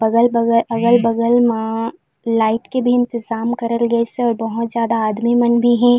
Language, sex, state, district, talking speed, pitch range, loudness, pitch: Chhattisgarhi, female, Chhattisgarh, Raigarh, 190 wpm, 230-240 Hz, -17 LUFS, 235 Hz